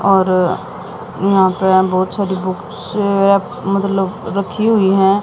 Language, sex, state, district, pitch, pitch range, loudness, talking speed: Hindi, female, Haryana, Jhajjar, 195 Hz, 185-200 Hz, -15 LUFS, 115 wpm